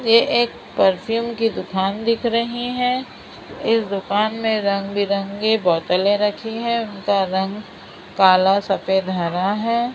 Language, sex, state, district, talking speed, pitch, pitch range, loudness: Hindi, female, Maharashtra, Mumbai Suburban, 140 wpm, 205 Hz, 190-230 Hz, -20 LUFS